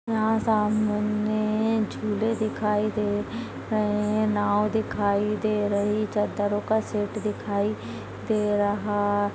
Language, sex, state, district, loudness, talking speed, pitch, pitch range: Hindi, female, Maharashtra, Solapur, -25 LUFS, 120 wpm, 210 Hz, 205-215 Hz